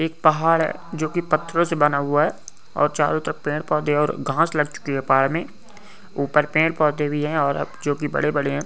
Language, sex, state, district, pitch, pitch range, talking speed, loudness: Hindi, male, Goa, North and South Goa, 150 Hz, 145-165 Hz, 215 wpm, -21 LUFS